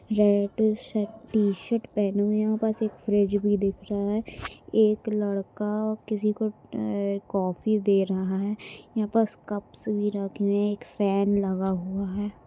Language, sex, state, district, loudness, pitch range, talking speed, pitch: Hindi, female, Chhattisgarh, Bilaspur, -26 LUFS, 200-215 Hz, 160 wpm, 205 Hz